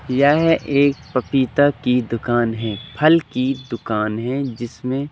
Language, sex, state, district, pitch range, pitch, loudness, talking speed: Hindi, male, Madhya Pradesh, Katni, 120-140 Hz, 130 Hz, -19 LUFS, 130 wpm